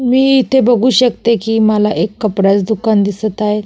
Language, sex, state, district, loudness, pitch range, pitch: Marathi, female, Maharashtra, Solapur, -13 LUFS, 210-245 Hz, 220 Hz